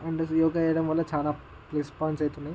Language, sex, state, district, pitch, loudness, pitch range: Telugu, male, Andhra Pradesh, Guntur, 155 Hz, -28 LUFS, 150-160 Hz